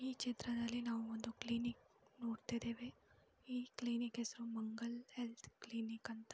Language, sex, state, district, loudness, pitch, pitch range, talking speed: Kannada, female, Karnataka, Mysore, -45 LUFS, 235 Hz, 230-240 Hz, 130 wpm